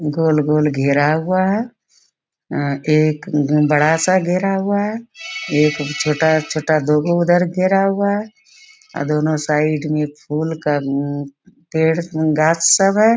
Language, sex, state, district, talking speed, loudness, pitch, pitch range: Hindi, female, Bihar, Bhagalpur, 130 wpm, -17 LUFS, 155 Hz, 150-190 Hz